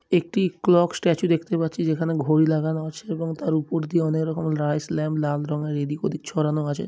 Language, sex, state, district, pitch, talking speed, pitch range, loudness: Bengali, male, West Bengal, Malda, 160 Hz, 210 wpm, 155-165 Hz, -24 LUFS